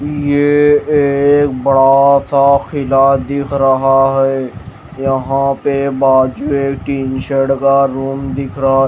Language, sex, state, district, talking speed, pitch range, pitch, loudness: Hindi, male, Maharashtra, Mumbai Suburban, 115 wpm, 135-140 Hz, 135 Hz, -13 LUFS